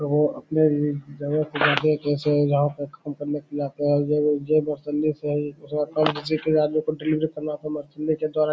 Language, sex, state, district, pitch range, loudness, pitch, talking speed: Hindi, male, Bihar, Saran, 145-155 Hz, -24 LUFS, 150 Hz, 70 wpm